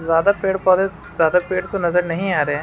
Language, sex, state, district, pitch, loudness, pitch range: Hindi, male, Jharkhand, Sahebganj, 180 Hz, -19 LUFS, 165-190 Hz